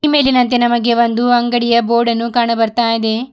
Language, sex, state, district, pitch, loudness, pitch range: Kannada, female, Karnataka, Bidar, 235 Hz, -14 LUFS, 235-245 Hz